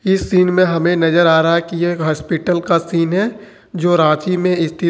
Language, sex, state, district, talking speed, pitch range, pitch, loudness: Hindi, male, Jharkhand, Ranchi, 220 wpm, 165-185 Hz, 175 Hz, -15 LUFS